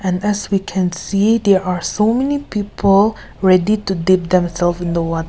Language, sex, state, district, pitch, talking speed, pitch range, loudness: English, female, Nagaland, Kohima, 195 Hz, 180 wpm, 180-205 Hz, -16 LUFS